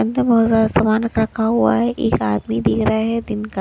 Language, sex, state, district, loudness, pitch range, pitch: Hindi, female, Punjab, Kapurthala, -17 LUFS, 170-225 Hz, 220 Hz